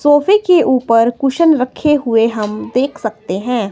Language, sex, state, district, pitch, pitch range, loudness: Hindi, female, Himachal Pradesh, Shimla, 255 Hz, 225-295 Hz, -14 LUFS